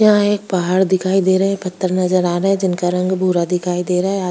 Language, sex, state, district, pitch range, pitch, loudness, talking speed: Hindi, female, Bihar, Kishanganj, 180-195 Hz, 185 Hz, -17 LUFS, 290 wpm